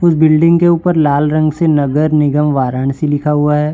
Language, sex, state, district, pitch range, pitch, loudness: Hindi, male, Uttar Pradesh, Varanasi, 145-160 Hz, 150 Hz, -12 LUFS